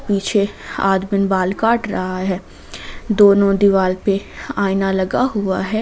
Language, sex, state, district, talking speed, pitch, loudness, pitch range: Hindi, female, Jharkhand, Ranchi, 135 wpm, 195 Hz, -17 LUFS, 190-205 Hz